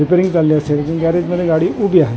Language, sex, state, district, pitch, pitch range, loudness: Marathi, male, Maharashtra, Mumbai Suburban, 165 Hz, 155-175 Hz, -15 LUFS